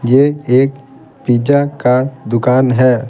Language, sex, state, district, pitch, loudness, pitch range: Hindi, male, Bihar, Patna, 130 Hz, -13 LUFS, 125-135 Hz